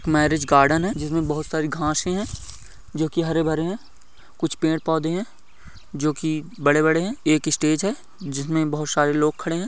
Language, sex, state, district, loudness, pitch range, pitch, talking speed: Hindi, male, Maharashtra, Chandrapur, -22 LUFS, 150-165 Hz, 155 Hz, 185 wpm